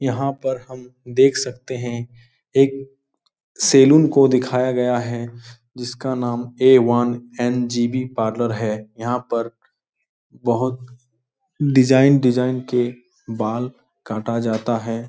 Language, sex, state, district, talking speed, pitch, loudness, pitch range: Hindi, male, Bihar, Jahanabad, 115 wpm, 125 Hz, -19 LUFS, 120-130 Hz